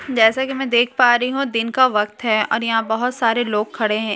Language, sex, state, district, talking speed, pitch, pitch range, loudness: Hindi, female, Bihar, Katihar, 305 wpm, 230 Hz, 220-255 Hz, -18 LUFS